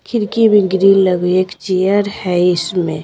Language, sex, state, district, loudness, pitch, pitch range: Hindi, female, Bihar, Patna, -14 LUFS, 185 Hz, 180-205 Hz